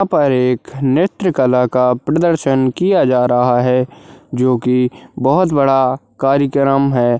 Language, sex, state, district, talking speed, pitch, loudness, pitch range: Hindi, male, Bihar, Darbhanga, 140 wpm, 130 Hz, -14 LUFS, 125-140 Hz